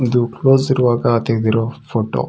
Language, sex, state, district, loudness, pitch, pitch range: Kannada, male, Karnataka, Raichur, -16 LUFS, 120 Hz, 115-130 Hz